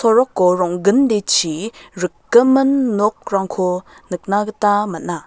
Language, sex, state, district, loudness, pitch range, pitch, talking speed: Garo, female, Meghalaya, West Garo Hills, -17 LUFS, 180-225 Hz, 205 Hz, 80 wpm